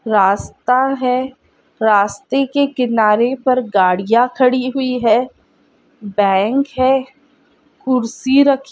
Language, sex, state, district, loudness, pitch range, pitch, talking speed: Hindi, female, Andhra Pradesh, Krishna, -15 LUFS, 220-270 Hz, 255 Hz, 95 wpm